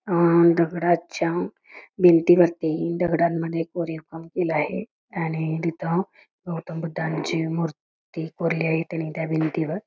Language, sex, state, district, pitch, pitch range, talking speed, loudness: Marathi, female, Karnataka, Belgaum, 165 Hz, 160-170 Hz, 90 wpm, -23 LUFS